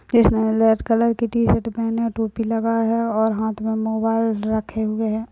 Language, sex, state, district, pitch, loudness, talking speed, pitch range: Hindi, female, Chhattisgarh, Balrampur, 225 Hz, -20 LUFS, 190 wpm, 220-230 Hz